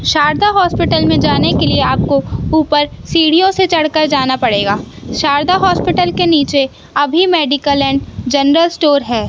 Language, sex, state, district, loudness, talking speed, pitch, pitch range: Hindi, male, Madhya Pradesh, Katni, -12 LUFS, 150 wpm, 295 Hz, 280-335 Hz